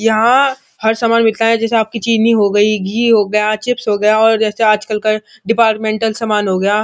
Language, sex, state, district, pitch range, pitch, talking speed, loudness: Hindi, male, Uttar Pradesh, Muzaffarnagar, 215-230 Hz, 220 Hz, 210 wpm, -13 LUFS